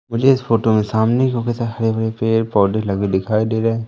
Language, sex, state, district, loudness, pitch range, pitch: Hindi, male, Madhya Pradesh, Umaria, -17 LUFS, 110-115 Hz, 115 Hz